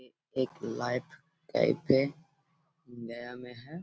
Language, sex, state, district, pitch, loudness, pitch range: Hindi, male, Bihar, Gaya, 130 Hz, -32 LUFS, 125-160 Hz